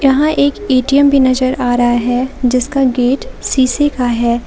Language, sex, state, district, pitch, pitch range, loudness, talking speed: Hindi, female, Jharkhand, Palamu, 255 Hz, 245-280 Hz, -13 LUFS, 175 wpm